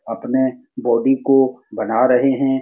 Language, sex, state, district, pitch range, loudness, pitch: Hindi, male, Bihar, Supaul, 130-135 Hz, -17 LUFS, 130 Hz